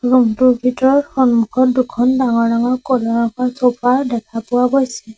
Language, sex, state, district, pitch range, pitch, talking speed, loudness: Assamese, female, Assam, Sonitpur, 235-255 Hz, 250 Hz, 150 wpm, -15 LUFS